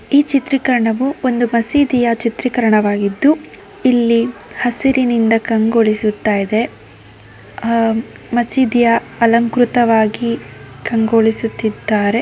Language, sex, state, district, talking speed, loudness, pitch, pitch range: Kannada, female, Karnataka, Raichur, 60 wpm, -15 LUFS, 230 Hz, 220-245 Hz